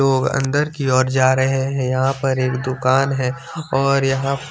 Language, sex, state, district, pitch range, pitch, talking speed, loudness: Hindi, male, Chandigarh, Chandigarh, 130-135 Hz, 135 Hz, 185 wpm, -18 LUFS